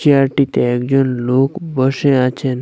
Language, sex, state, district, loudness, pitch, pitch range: Bengali, male, Assam, Hailakandi, -15 LUFS, 135 Hz, 125-140 Hz